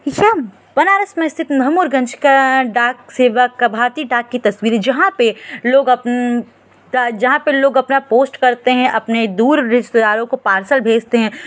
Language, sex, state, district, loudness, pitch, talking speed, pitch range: Hindi, female, Uttar Pradesh, Varanasi, -14 LUFS, 250 Hz, 160 wpm, 240-275 Hz